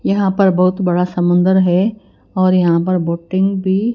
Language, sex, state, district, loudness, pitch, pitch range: Hindi, female, Himachal Pradesh, Shimla, -15 LUFS, 185 Hz, 180-195 Hz